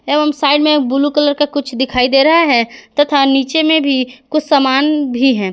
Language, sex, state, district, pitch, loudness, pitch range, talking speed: Hindi, female, Jharkhand, Garhwa, 285 Hz, -13 LUFS, 265-295 Hz, 205 wpm